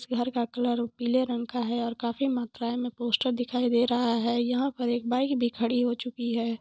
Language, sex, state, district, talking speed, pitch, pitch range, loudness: Hindi, female, Jharkhand, Sahebganj, 235 wpm, 240 Hz, 235-245 Hz, -28 LUFS